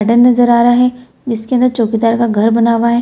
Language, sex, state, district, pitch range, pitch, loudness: Hindi, female, Bihar, Samastipur, 230-245 Hz, 235 Hz, -12 LUFS